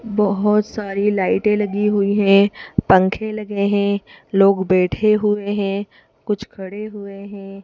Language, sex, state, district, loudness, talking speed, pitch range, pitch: Hindi, female, Madhya Pradesh, Bhopal, -18 LUFS, 135 wpm, 195-210 Hz, 200 Hz